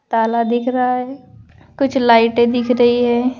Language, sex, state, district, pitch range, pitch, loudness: Hindi, female, Uttar Pradesh, Shamli, 235-250 Hz, 240 Hz, -15 LUFS